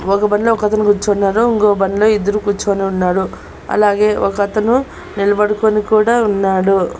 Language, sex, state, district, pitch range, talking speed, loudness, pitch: Telugu, female, Andhra Pradesh, Annamaya, 200-215 Hz, 130 wpm, -14 LUFS, 205 Hz